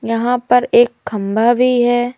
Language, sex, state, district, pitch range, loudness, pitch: Hindi, female, Madhya Pradesh, Umaria, 230-245 Hz, -14 LUFS, 240 Hz